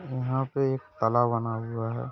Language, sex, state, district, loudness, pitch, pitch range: Hindi, male, Uttar Pradesh, Hamirpur, -28 LUFS, 120 Hz, 115-135 Hz